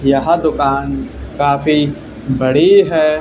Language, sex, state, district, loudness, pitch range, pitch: Hindi, male, Haryana, Charkhi Dadri, -14 LUFS, 135-155 Hz, 145 Hz